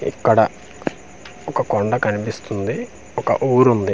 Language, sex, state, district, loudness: Telugu, male, Andhra Pradesh, Manyam, -20 LUFS